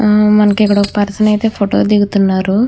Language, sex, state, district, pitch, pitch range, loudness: Telugu, female, Andhra Pradesh, Krishna, 210 Hz, 200-210 Hz, -12 LUFS